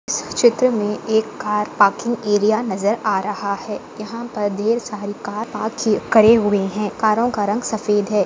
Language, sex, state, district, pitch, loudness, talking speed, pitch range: Hindi, female, Maharashtra, Chandrapur, 215 Hz, -19 LUFS, 190 wpm, 205-225 Hz